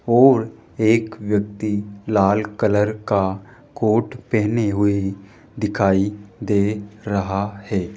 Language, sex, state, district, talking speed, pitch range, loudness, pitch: Hindi, male, Rajasthan, Jaipur, 100 wpm, 100-110 Hz, -20 LUFS, 105 Hz